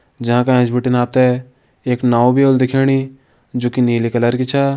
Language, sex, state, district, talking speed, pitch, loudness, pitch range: Hindi, male, Uttarakhand, Tehri Garhwal, 200 wpm, 125 Hz, -15 LUFS, 120-130 Hz